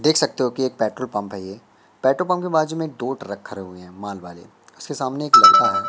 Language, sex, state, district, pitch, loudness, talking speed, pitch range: Hindi, male, Madhya Pradesh, Katni, 130 Hz, -18 LUFS, 265 wpm, 100-155 Hz